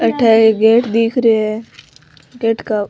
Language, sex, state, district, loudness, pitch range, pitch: Rajasthani, female, Rajasthan, Nagaur, -13 LUFS, 210-230 Hz, 225 Hz